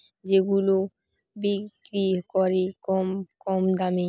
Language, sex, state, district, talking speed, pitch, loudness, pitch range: Bengali, female, West Bengal, Dakshin Dinajpur, 90 wpm, 190 Hz, -26 LUFS, 185-195 Hz